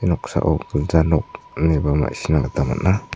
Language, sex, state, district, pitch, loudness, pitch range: Garo, male, Meghalaya, South Garo Hills, 80 Hz, -20 LUFS, 75-85 Hz